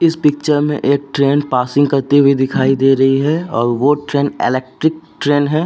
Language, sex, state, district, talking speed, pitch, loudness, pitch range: Hindi, male, Uttar Pradesh, Jalaun, 190 wpm, 145 Hz, -14 LUFS, 135-150 Hz